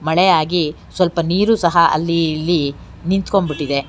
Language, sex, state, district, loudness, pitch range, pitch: Kannada, female, Karnataka, Bangalore, -16 LUFS, 155-185 Hz, 170 Hz